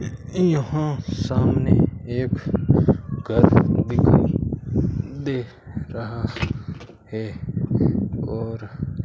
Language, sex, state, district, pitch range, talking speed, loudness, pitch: Hindi, male, Rajasthan, Bikaner, 110-140 Hz, 65 wpm, -22 LUFS, 125 Hz